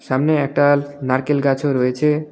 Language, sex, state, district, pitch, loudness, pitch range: Bengali, male, West Bengal, Alipurduar, 145 Hz, -18 LUFS, 130-150 Hz